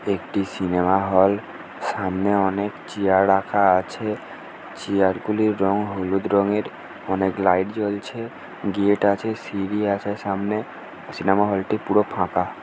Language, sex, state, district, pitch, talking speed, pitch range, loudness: Bengali, male, West Bengal, North 24 Parganas, 100 Hz, 120 wpm, 95-105 Hz, -22 LUFS